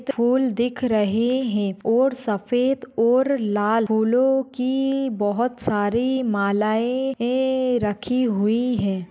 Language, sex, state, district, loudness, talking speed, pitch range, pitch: Hindi, female, Maharashtra, Pune, -21 LUFS, 110 wpm, 215-255 Hz, 240 Hz